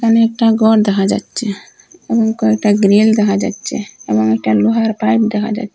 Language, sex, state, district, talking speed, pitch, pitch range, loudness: Bengali, female, Assam, Hailakandi, 165 wpm, 220 Hz, 205-225 Hz, -14 LUFS